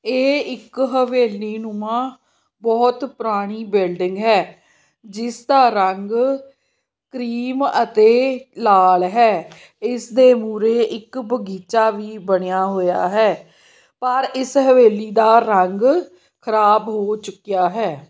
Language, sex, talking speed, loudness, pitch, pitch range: Punjabi, female, 105 wpm, -17 LUFS, 225 Hz, 210-250 Hz